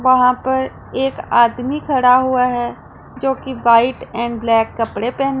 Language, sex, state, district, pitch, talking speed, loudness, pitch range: Hindi, female, Punjab, Pathankot, 250 Hz, 155 wpm, -16 LUFS, 235-265 Hz